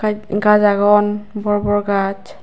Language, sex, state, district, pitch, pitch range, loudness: Chakma, female, Tripura, West Tripura, 205 Hz, 205-210 Hz, -16 LUFS